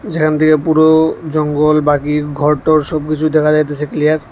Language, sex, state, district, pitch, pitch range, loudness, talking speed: Bengali, male, Tripura, West Tripura, 155 Hz, 150-155 Hz, -13 LUFS, 165 wpm